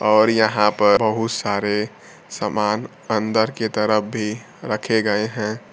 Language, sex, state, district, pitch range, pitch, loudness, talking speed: Hindi, male, Bihar, Kaimur, 105-110 Hz, 110 Hz, -20 LUFS, 135 wpm